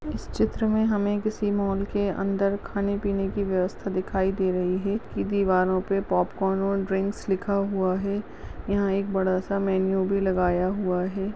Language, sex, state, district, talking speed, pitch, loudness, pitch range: Hindi, female, Maharashtra, Nagpur, 175 wpm, 195 Hz, -26 LUFS, 185-200 Hz